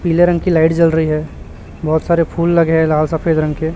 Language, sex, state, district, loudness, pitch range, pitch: Hindi, male, Chhattisgarh, Raipur, -14 LUFS, 160-170 Hz, 160 Hz